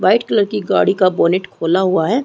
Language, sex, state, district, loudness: Hindi, female, Chhattisgarh, Rajnandgaon, -15 LUFS